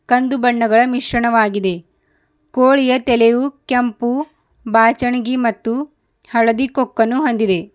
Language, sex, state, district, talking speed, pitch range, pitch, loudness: Kannada, female, Karnataka, Bidar, 85 wpm, 230-255 Hz, 245 Hz, -16 LUFS